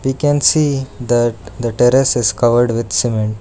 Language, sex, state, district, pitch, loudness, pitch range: English, male, Karnataka, Bangalore, 120 Hz, -15 LUFS, 115-135 Hz